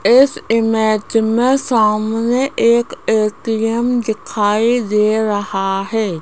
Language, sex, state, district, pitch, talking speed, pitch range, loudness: Hindi, female, Rajasthan, Jaipur, 225 Hz, 95 wpm, 215-235 Hz, -15 LUFS